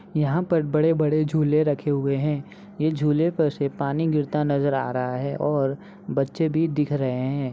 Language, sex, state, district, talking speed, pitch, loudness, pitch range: Hindi, male, Bihar, Saran, 185 wpm, 150 Hz, -23 LUFS, 140-160 Hz